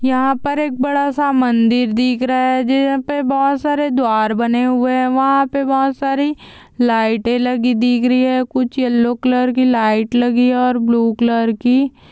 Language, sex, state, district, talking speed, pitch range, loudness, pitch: Hindi, female, Andhra Pradesh, Chittoor, 185 wpm, 240-275 Hz, -16 LUFS, 255 Hz